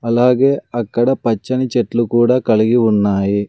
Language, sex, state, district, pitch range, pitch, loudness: Telugu, male, Andhra Pradesh, Sri Satya Sai, 110-125 Hz, 120 Hz, -15 LUFS